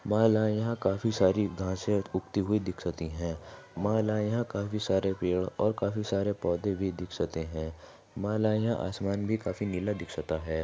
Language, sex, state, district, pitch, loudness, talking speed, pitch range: Hindi, female, Maharashtra, Aurangabad, 100 Hz, -30 LUFS, 150 wpm, 90-105 Hz